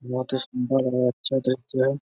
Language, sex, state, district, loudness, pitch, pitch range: Hindi, male, Bihar, Araria, -24 LUFS, 130 Hz, 125-135 Hz